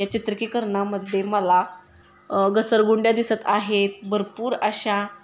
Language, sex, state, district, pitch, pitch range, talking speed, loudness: Marathi, female, Maharashtra, Dhule, 205 Hz, 200-220 Hz, 115 wpm, -22 LUFS